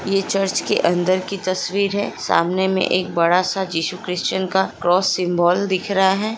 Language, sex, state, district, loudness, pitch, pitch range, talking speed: Hindi, female, Chhattisgarh, Sukma, -19 LUFS, 185 Hz, 180-195 Hz, 190 wpm